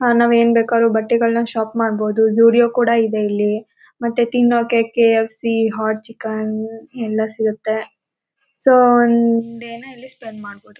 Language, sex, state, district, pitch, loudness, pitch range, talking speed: Kannada, female, Karnataka, Mysore, 230 Hz, -16 LUFS, 220-235 Hz, 140 wpm